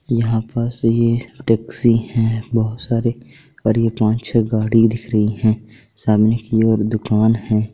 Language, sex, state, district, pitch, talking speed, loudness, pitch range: Hindi, male, Bihar, Gopalganj, 115 Hz, 145 wpm, -18 LUFS, 110-115 Hz